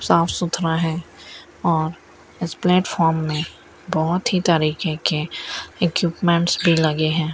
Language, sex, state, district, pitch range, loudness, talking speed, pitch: Hindi, female, Rajasthan, Bikaner, 160-175 Hz, -20 LUFS, 125 wpm, 165 Hz